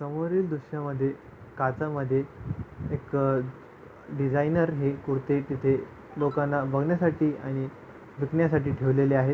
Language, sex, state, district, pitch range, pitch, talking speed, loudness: Marathi, male, Maharashtra, Pune, 135-150 Hz, 140 Hz, 105 wpm, -28 LUFS